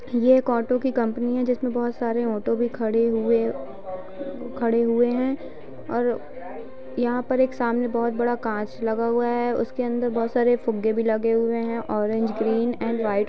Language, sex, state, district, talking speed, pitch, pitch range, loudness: Hindi, female, Bihar, East Champaran, 190 wpm, 235 Hz, 230-245 Hz, -23 LUFS